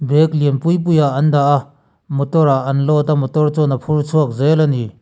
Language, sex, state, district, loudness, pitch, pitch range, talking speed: Mizo, male, Mizoram, Aizawl, -15 LUFS, 145 Hz, 140-155 Hz, 240 wpm